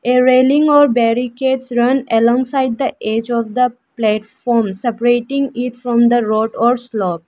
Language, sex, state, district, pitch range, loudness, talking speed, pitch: English, female, Arunachal Pradesh, Lower Dibang Valley, 230-255 Hz, -15 LUFS, 150 wpm, 240 Hz